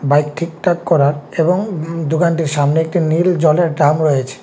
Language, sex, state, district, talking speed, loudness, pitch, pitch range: Bengali, male, Tripura, West Tripura, 150 wpm, -15 LUFS, 160 Hz, 145-170 Hz